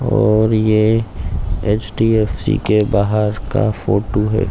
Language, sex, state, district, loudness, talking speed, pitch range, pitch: Hindi, male, Chhattisgarh, Bilaspur, -16 LUFS, 105 wpm, 100-110 Hz, 105 Hz